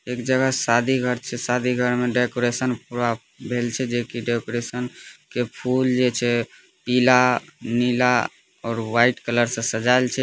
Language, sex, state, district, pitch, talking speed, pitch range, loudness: Maithili, male, Bihar, Purnia, 125 Hz, 150 wpm, 120-125 Hz, -22 LUFS